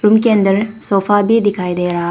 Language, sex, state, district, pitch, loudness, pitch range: Hindi, female, Arunachal Pradesh, Papum Pare, 205 Hz, -14 LUFS, 185-215 Hz